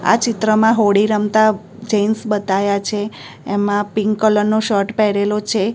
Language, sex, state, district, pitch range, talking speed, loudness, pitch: Gujarati, female, Gujarat, Gandhinagar, 205-215 Hz, 145 wpm, -16 LUFS, 210 Hz